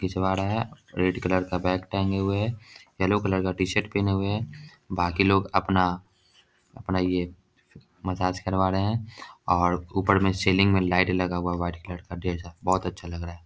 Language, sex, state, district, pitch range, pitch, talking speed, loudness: Hindi, male, Bihar, Jahanabad, 90-95 Hz, 95 Hz, 195 wpm, -26 LUFS